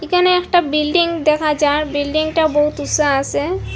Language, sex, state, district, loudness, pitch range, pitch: Bengali, female, Assam, Hailakandi, -16 LUFS, 295-340 Hz, 305 Hz